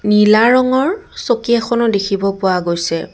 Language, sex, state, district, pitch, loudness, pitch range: Assamese, female, Assam, Kamrup Metropolitan, 220 Hz, -14 LUFS, 195-245 Hz